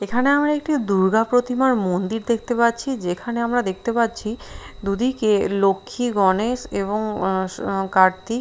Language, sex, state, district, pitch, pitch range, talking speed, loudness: Bengali, female, Bihar, Katihar, 225 Hz, 195-245 Hz, 130 wpm, -21 LUFS